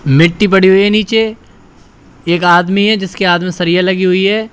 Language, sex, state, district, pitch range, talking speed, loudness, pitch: Hindi, male, Uttar Pradesh, Shamli, 170-200 Hz, 200 wpm, -11 LUFS, 185 Hz